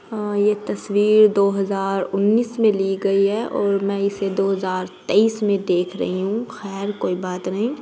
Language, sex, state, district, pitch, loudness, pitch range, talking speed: Hindi, female, Bihar, East Champaran, 200 Hz, -20 LUFS, 195-210 Hz, 185 wpm